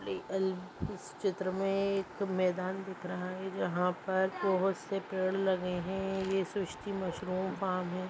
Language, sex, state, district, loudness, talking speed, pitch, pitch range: Bhojpuri, female, Uttar Pradesh, Gorakhpur, -34 LUFS, 155 wpm, 190 Hz, 185-195 Hz